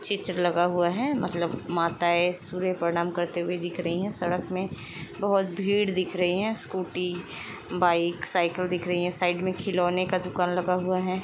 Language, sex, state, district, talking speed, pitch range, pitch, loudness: Hindi, female, Uttar Pradesh, Etah, 180 wpm, 175-185 Hz, 180 Hz, -27 LUFS